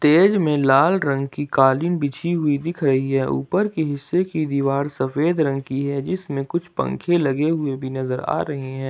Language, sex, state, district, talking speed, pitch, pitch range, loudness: Hindi, male, Jharkhand, Ranchi, 200 wpm, 145 Hz, 135-165 Hz, -21 LUFS